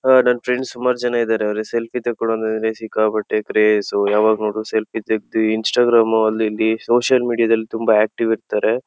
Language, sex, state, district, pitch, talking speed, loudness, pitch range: Kannada, male, Karnataka, Shimoga, 110 Hz, 170 wpm, -18 LUFS, 110-120 Hz